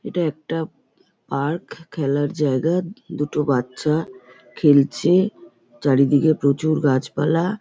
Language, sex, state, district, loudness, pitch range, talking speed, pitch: Bengali, female, West Bengal, North 24 Parganas, -20 LUFS, 140-170 Hz, 100 wpm, 150 Hz